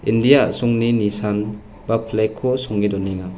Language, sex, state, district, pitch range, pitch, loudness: Garo, male, Meghalaya, West Garo Hills, 105-115 Hz, 110 Hz, -19 LUFS